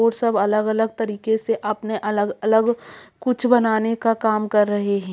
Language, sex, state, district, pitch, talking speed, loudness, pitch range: Hindi, female, Bihar, Jamui, 220 Hz, 175 wpm, -20 LUFS, 210-225 Hz